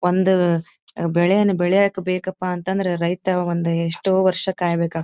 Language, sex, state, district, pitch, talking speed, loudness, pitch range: Kannada, female, Karnataka, Dharwad, 180 Hz, 130 wpm, -20 LUFS, 170-190 Hz